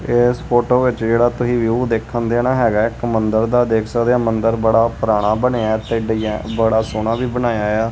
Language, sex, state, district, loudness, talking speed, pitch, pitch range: Punjabi, male, Punjab, Kapurthala, -17 LUFS, 210 wpm, 115 Hz, 110-120 Hz